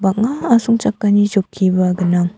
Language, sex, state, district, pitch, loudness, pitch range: Garo, female, Meghalaya, South Garo Hills, 200 Hz, -15 LUFS, 185-230 Hz